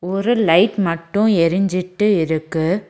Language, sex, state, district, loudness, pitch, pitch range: Tamil, female, Tamil Nadu, Nilgiris, -17 LUFS, 185 Hz, 170-205 Hz